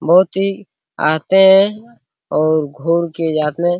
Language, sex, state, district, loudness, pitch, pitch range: Hindi, male, Bihar, Araria, -15 LUFS, 170 Hz, 155-195 Hz